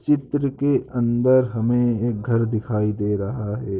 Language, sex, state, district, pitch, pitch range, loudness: Hindi, male, Maharashtra, Chandrapur, 120 Hz, 105-130 Hz, -21 LUFS